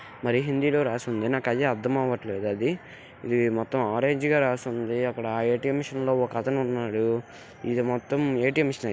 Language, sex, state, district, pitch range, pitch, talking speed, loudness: Telugu, male, Andhra Pradesh, Guntur, 120-135 Hz, 125 Hz, 180 wpm, -26 LUFS